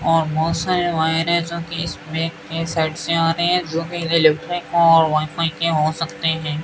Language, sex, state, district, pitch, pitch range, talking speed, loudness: Hindi, male, Rajasthan, Bikaner, 165 Hz, 160-170 Hz, 200 wpm, -19 LUFS